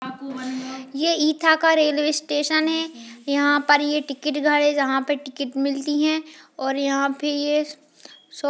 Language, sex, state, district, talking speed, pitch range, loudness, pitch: Hindi, female, Uttar Pradesh, Etah, 155 wpm, 275-305 Hz, -21 LUFS, 290 Hz